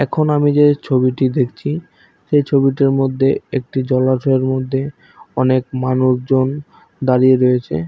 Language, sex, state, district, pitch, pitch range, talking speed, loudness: Bengali, male, West Bengal, Paschim Medinipur, 130 Hz, 130-140 Hz, 115 wpm, -16 LUFS